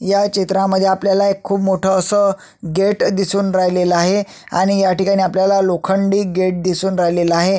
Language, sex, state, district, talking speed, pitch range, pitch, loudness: Marathi, male, Maharashtra, Sindhudurg, 160 wpm, 185-195 Hz, 190 Hz, -16 LUFS